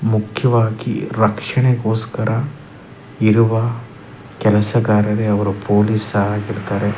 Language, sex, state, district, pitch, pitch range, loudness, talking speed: Kannada, male, Karnataka, Chamarajanagar, 110 Hz, 105-115 Hz, -17 LUFS, 70 wpm